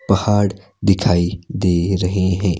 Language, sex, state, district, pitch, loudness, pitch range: Hindi, male, Himachal Pradesh, Shimla, 95 Hz, -18 LUFS, 90-100 Hz